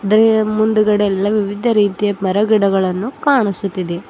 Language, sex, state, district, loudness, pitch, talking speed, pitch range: Kannada, female, Karnataka, Bidar, -15 LUFS, 205 Hz, 90 wpm, 195-215 Hz